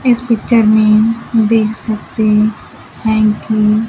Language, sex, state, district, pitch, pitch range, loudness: Hindi, female, Bihar, Kaimur, 220 Hz, 215-225 Hz, -13 LUFS